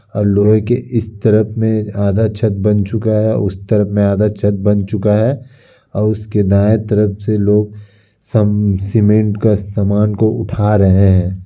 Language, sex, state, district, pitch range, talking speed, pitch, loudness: Hindi, male, Bihar, Kishanganj, 100-110 Hz, 175 wpm, 105 Hz, -14 LUFS